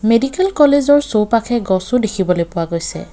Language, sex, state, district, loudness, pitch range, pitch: Assamese, male, Assam, Kamrup Metropolitan, -15 LUFS, 185-275 Hz, 230 Hz